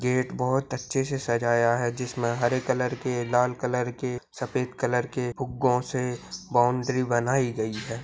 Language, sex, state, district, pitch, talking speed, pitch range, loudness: Hindi, male, Chhattisgarh, Balrampur, 125 Hz, 165 wpm, 120-130 Hz, -27 LUFS